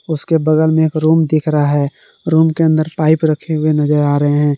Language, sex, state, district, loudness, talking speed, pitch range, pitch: Hindi, male, Jharkhand, Palamu, -14 LUFS, 235 wpm, 150-160 Hz, 155 Hz